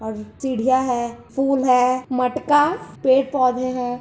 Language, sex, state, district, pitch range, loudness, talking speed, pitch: Hindi, female, Chhattisgarh, Bilaspur, 250-270 Hz, -20 LUFS, 120 wpm, 255 Hz